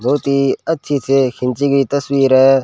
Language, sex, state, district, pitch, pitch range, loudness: Hindi, male, Rajasthan, Bikaner, 135 Hz, 135-140 Hz, -15 LUFS